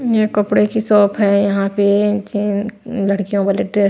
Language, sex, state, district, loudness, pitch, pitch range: Hindi, female, Punjab, Pathankot, -16 LUFS, 205 Hz, 200-210 Hz